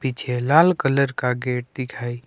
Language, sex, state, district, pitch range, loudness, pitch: Hindi, male, Himachal Pradesh, Shimla, 125-140 Hz, -21 LUFS, 130 Hz